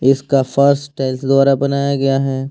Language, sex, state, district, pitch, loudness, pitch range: Hindi, male, Jharkhand, Ranchi, 135 Hz, -15 LUFS, 135-140 Hz